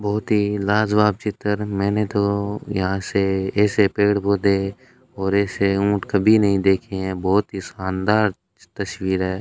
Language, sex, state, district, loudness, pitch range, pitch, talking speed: Hindi, male, Rajasthan, Bikaner, -20 LUFS, 95-105 Hz, 100 Hz, 145 wpm